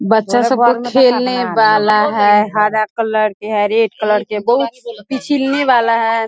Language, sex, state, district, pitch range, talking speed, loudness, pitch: Hindi, female, Bihar, East Champaran, 215-245 Hz, 155 wpm, -14 LUFS, 225 Hz